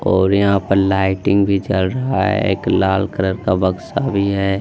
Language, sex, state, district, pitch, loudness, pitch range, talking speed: Hindi, male, Bihar, Gaya, 95 Hz, -17 LUFS, 95-100 Hz, 195 wpm